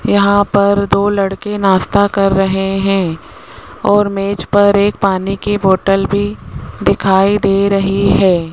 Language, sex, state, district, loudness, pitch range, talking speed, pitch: Hindi, female, Rajasthan, Jaipur, -13 LUFS, 195-200 Hz, 140 wpm, 195 Hz